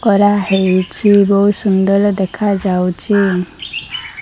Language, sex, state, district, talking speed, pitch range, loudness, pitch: Odia, female, Odisha, Malkangiri, 70 wpm, 190-205 Hz, -14 LUFS, 200 Hz